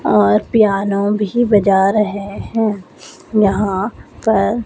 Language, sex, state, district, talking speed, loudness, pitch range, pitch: Hindi, male, Madhya Pradesh, Dhar, 105 wpm, -16 LUFS, 195-220 Hz, 205 Hz